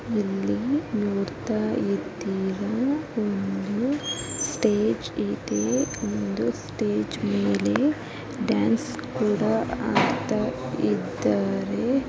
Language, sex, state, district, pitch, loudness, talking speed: Kannada, female, Karnataka, Chamarajanagar, 195 Hz, -26 LUFS, 40 wpm